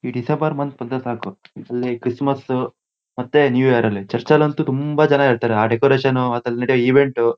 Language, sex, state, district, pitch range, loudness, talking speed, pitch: Kannada, male, Karnataka, Shimoga, 120-140 Hz, -18 LUFS, 180 wpm, 125 Hz